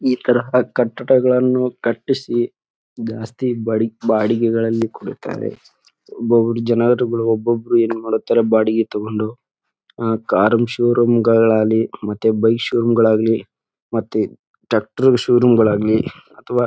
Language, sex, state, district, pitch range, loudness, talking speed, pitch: Kannada, male, Karnataka, Bijapur, 110-120 Hz, -17 LUFS, 110 wpm, 115 Hz